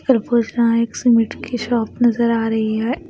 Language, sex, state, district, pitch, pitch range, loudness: Hindi, female, Bihar, Kaimur, 235 Hz, 225-240 Hz, -18 LUFS